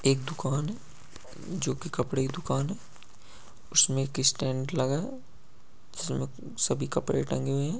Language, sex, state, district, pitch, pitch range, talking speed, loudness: Hindi, male, Jharkhand, Jamtara, 135 Hz, 130-150 Hz, 155 wpm, -29 LUFS